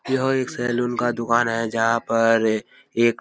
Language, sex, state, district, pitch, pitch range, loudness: Hindi, male, Bihar, Kishanganj, 115 Hz, 115-120 Hz, -21 LUFS